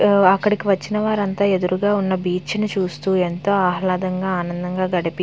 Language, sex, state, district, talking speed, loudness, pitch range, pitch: Telugu, female, Andhra Pradesh, Visakhapatnam, 140 wpm, -20 LUFS, 180-200 Hz, 185 Hz